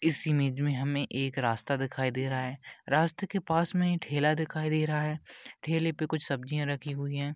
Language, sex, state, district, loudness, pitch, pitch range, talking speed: Hindi, male, Maharashtra, Dhule, -30 LUFS, 145 Hz, 140-160 Hz, 205 wpm